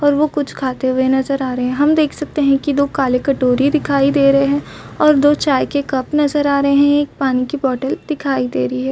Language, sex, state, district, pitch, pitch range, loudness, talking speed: Hindi, female, Chhattisgarh, Raigarh, 280 Hz, 260-290 Hz, -16 LUFS, 270 wpm